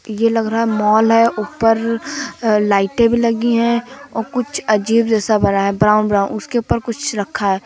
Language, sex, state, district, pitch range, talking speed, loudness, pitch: Hindi, male, Uttar Pradesh, Lucknow, 210-235 Hz, 180 wpm, -16 LUFS, 225 Hz